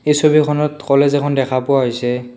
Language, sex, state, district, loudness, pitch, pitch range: Assamese, male, Assam, Kamrup Metropolitan, -15 LUFS, 140 Hz, 130-150 Hz